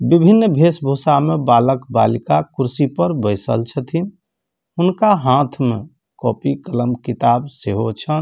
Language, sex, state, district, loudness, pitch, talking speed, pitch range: Maithili, male, Bihar, Samastipur, -17 LUFS, 135 Hz, 130 wpm, 120-165 Hz